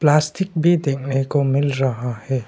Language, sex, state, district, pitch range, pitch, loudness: Hindi, male, Arunachal Pradesh, Longding, 135-150 Hz, 140 Hz, -20 LUFS